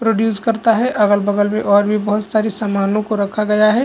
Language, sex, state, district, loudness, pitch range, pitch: Hindi, male, Chhattisgarh, Korba, -16 LUFS, 205-220 Hz, 215 Hz